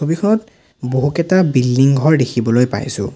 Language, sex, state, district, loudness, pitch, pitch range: Assamese, male, Assam, Sonitpur, -15 LUFS, 135 Hz, 125-165 Hz